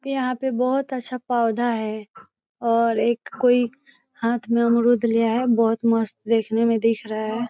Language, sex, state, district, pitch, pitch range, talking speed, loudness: Hindi, female, Bihar, East Champaran, 235 Hz, 225-245 Hz, 170 wpm, -21 LUFS